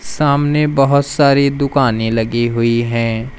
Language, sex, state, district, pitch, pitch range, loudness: Hindi, male, Madhya Pradesh, Umaria, 135 Hz, 115-140 Hz, -14 LUFS